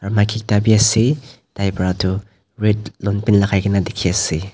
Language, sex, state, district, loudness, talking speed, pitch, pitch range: Nagamese, male, Nagaland, Dimapur, -17 LUFS, 145 wpm, 100 Hz, 95-110 Hz